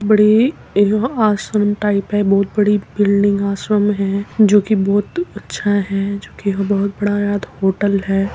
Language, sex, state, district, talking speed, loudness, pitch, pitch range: Hindi, female, Uttar Pradesh, Muzaffarnagar, 135 wpm, -16 LUFS, 205 Hz, 200-210 Hz